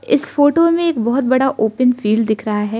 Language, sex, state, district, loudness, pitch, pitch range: Hindi, female, Arunachal Pradesh, Lower Dibang Valley, -15 LUFS, 250 Hz, 220-285 Hz